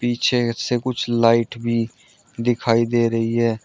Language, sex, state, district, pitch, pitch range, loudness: Hindi, male, Uttar Pradesh, Shamli, 115 Hz, 115-120 Hz, -20 LUFS